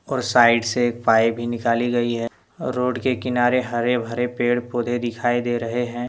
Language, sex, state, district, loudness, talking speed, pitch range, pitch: Hindi, male, Jharkhand, Deoghar, -21 LUFS, 185 wpm, 120-125 Hz, 120 Hz